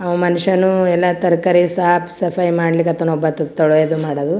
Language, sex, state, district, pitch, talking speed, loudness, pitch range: Kannada, female, Karnataka, Gulbarga, 175 Hz, 150 wpm, -16 LUFS, 160-180 Hz